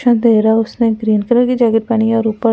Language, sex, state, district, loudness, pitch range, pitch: Hindi, female, Delhi, New Delhi, -13 LUFS, 220-235 Hz, 225 Hz